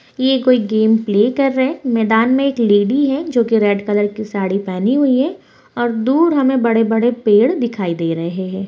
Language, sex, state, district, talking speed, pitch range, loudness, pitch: Hindi, female, Bihar, Muzaffarpur, 205 wpm, 205-260 Hz, -15 LUFS, 230 Hz